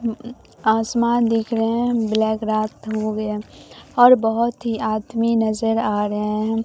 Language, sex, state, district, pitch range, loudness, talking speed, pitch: Hindi, male, Bihar, Katihar, 215-230 Hz, -20 LUFS, 145 wpm, 225 Hz